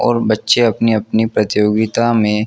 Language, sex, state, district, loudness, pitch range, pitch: Hindi, male, Jharkhand, Jamtara, -15 LUFS, 110-115 Hz, 110 Hz